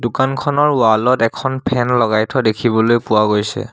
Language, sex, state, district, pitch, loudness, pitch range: Assamese, male, Assam, Sonitpur, 120 Hz, -15 LUFS, 110-130 Hz